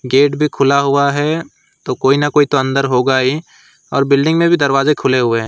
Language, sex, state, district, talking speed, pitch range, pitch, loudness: Hindi, male, West Bengal, Alipurduar, 220 wpm, 135-145 Hz, 140 Hz, -14 LUFS